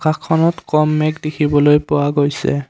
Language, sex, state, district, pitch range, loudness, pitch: Assamese, male, Assam, Kamrup Metropolitan, 145-155 Hz, -16 LUFS, 155 Hz